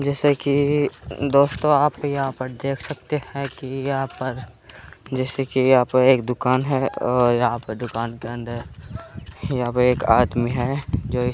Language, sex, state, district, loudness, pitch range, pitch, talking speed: Hindi, male, Uttar Pradesh, Muzaffarnagar, -21 LUFS, 120-140 Hz, 130 Hz, 170 wpm